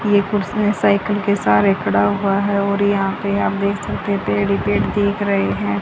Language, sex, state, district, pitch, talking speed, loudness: Hindi, female, Haryana, Charkhi Dadri, 200 Hz, 215 wpm, -18 LUFS